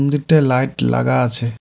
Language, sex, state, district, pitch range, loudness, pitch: Bengali, male, West Bengal, Cooch Behar, 90-140 Hz, -16 LUFS, 125 Hz